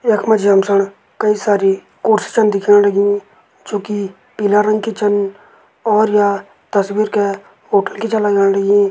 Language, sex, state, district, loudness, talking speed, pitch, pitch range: Garhwali, male, Uttarakhand, Uttarkashi, -15 LUFS, 170 wpm, 205 Hz, 200-215 Hz